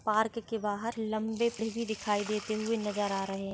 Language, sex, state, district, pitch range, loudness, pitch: Marathi, female, Maharashtra, Sindhudurg, 205-225 Hz, -32 LUFS, 215 Hz